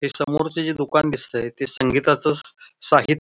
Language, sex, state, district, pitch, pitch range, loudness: Marathi, male, Maharashtra, Solapur, 150 Hz, 135-155 Hz, -21 LUFS